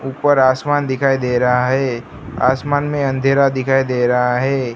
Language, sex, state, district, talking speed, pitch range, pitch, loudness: Hindi, male, Gujarat, Gandhinagar, 165 wpm, 125-135 Hz, 135 Hz, -16 LUFS